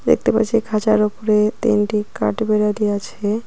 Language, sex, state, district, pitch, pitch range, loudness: Bengali, female, West Bengal, Cooch Behar, 215 Hz, 210-220 Hz, -18 LUFS